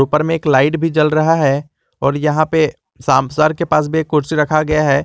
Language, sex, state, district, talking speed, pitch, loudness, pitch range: Hindi, male, Jharkhand, Garhwa, 225 wpm, 155 Hz, -15 LUFS, 145-160 Hz